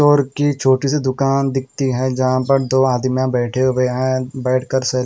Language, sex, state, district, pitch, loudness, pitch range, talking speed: Hindi, male, Haryana, Rohtak, 130 Hz, -17 LUFS, 130-135 Hz, 190 wpm